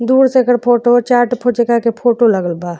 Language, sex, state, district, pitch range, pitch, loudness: Bhojpuri, female, Uttar Pradesh, Deoria, 230-245 Hz, 240 Hz, -13 LUFS